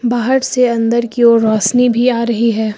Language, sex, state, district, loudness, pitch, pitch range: Hindi, female, Uttar Pradesh, Lucknow, -13 LUFS, 235 Hz, 230-245 Hz